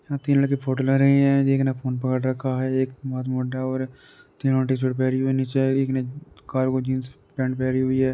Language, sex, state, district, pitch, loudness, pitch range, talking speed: Hindi, male, Uttar Pradesh, Varanasi, 130 Hz, -23 LUFS, 130-135 Hz, 230 wpm